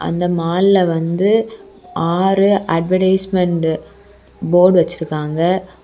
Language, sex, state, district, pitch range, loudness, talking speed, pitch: Tamil, female, Tamil Nadu, Kanyakumari, 165-190 Hz, -15 LUFS, 80 wpm, 180 Hz